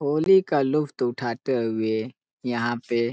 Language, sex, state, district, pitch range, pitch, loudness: Hindi, male, Uttar Pradesh, Ghazipur, 115-145 Hz, 125 Hz, -24 LUFS